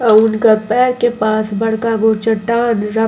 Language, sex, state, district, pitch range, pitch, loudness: Bhojpuri, female, Uttar Pradesh, Ghazipur, 215-235 Hz, 225 Hz, -14 LUFS